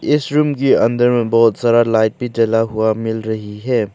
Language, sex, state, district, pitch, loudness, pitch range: Hindi, male, Arunachal Pradesh, Lower Dibang Valley, 115 Hz, -15 LUFS, 110-125 Hz